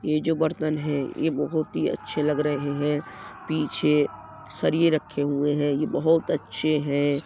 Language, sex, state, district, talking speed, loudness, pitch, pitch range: Hindi, male, Uttar Pradesh, Jyotiba Phule Nagar, 165 wpm, -25 LUFS, 150 Hz, 145-155 Hz